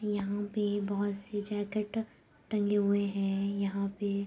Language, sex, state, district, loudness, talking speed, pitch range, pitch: Hindi, female, Uttar Pradesh, Budaun, -33 LUFS, 155 wpm, 200-205 Hz, 205 Hz